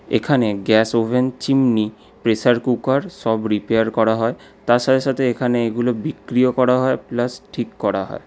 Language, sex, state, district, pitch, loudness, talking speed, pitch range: Bengali, male, West Bengal, Alipurduar, 120 Hz, -19 LUFS, 160 wpm, 115-130 Hz